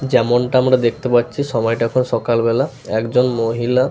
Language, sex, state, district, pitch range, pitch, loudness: Bengali, male, West Bengal, Paschim Medinipur, 115-130 Hz, 120 Hz, -17 LUFS